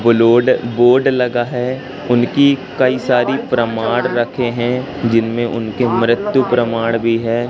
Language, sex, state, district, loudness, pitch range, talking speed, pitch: Hindi, male, Madhya Pradesh, Katni, -15 LUFS, 115-125 Hz, 135 wpm, 120 Hz